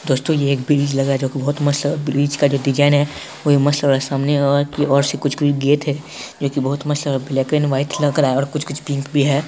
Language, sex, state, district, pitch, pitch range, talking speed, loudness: Hindi, male, Bihar, Saharsa, 145 Hz, 140-145 Hz, 305 wpm, -18 LUFS